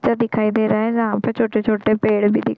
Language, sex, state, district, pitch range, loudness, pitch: Hindi, female, Chhattisgarh, Korba, 215-225 Hz, -18 LUFS, 215 Hz